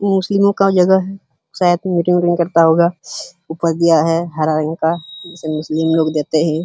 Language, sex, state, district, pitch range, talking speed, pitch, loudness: Hindi, male, Uttar Pradesh, Hamirpur, 160-180 Hz, 180 wpm, 170 Hz, -15 LUFS